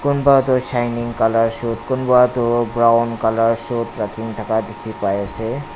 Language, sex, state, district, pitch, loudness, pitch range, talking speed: Nagamese, male, Nagaland, Dimapur, 115 Hz, -17 LUFS, 110-120 Hz, 145 wpm